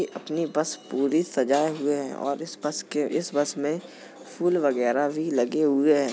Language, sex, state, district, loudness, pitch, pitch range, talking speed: Hindi, male, Uttar Pradesh, Jalaun, -25 LUFS, 150 Hz, 140-160 Hz, 195 wpm